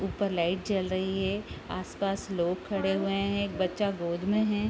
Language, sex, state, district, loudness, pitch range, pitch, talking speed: Hindi, female, Bihar, East Champaran, -30 LUFS, 185-200 Hz, 195 Hz, 190 wpm